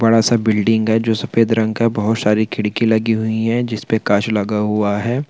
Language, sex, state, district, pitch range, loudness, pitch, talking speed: Hindi, male, Bihar, Begusarai, 105-115 Hz, -17 LUFS, 110 Hz, 225 wpm